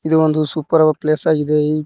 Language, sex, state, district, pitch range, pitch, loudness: Kannada, male, Karnataka, Koppal, 155-160 Hz, 155 Hz, -15 LUFS